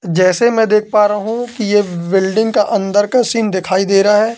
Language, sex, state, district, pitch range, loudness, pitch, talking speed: Hindi, male, Madhya Pradesh, Katni, 195-225 Hz, -14 LUFS, 210 Hz, 235 wpm